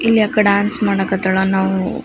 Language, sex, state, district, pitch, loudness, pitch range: Kannada, female, Karnataka, Raichur, 200 Hz, -15 LUFS, 190-210 Hz